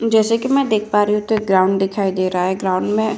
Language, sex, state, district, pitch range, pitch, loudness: Hindi, female, Uttar Pradesh, Hamirpur, 190-220 Hz, 210 Hz, -17 LUFS